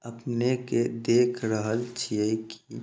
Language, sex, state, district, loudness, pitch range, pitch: Maithili, male, Bihar, Samastipur, -27 LUFS, 110-120 Hz, 115 Hz